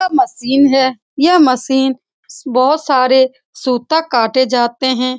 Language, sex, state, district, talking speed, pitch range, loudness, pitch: Hindi, female, Bihar, Saran, 140 wpm, 255-290 Hz, -13 LUFS, 260 Hz